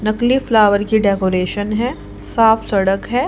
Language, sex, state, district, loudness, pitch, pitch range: Hindi, female, Haryana, Charkhi Dadri, -16 LUFS, 215 Hz, 200-230 Hz